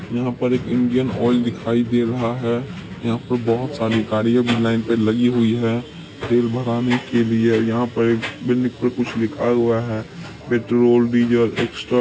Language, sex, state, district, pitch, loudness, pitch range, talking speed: Maithili, male, Bihar, Supaul, 120 Hz, -19 LUFS, 115-120 Hz, 175 wpm